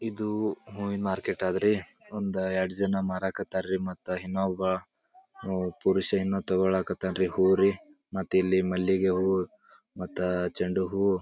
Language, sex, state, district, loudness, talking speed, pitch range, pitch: Kannada, male, Karnataka, Bijapur, -28 LUFS, 130 wpm, 95-100 Hz, 95 Hz